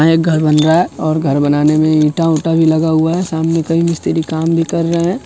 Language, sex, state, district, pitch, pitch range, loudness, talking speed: Hindi, male, Bihar, Sitamarhi, 160 Hz, 155-165 Hz, -13 LUFS, 265 wpm